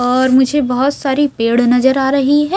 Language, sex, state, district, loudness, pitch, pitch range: Hindi, female, Maharashtra, Mumbai Suburban, -13 LUFS, 265 Hz, 250-280 Hz